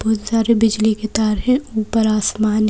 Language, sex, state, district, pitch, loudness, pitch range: Hindi, female, Madhya Pradesh, Bhopal, 220 Hz, -17 LUFS, 215-225 Hz